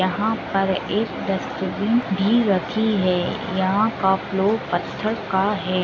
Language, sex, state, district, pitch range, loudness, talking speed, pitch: Hindi, female, Uttar Pradesh, Etah, 190-220 Hz, -21 LUFS, 135 wpm, 200 Hz